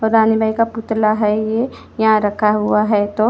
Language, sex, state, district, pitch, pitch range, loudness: Hindi, female, Maharashtra, Gondia, 220 Hz, 210-220 Hz, -16 LUFS